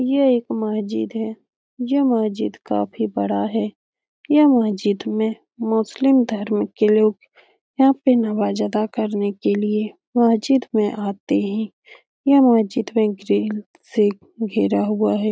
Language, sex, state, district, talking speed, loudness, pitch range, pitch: Hindi, female, Bihar, Saran, 135 wpm, -20 LUFS, 205-240 Hz, 215 Hz